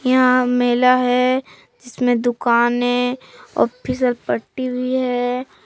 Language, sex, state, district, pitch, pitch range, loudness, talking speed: Hindi, female, Jharkhand, Palamu, 250 Hz, 245-255 Hz, -18 LUFS, 85 wpm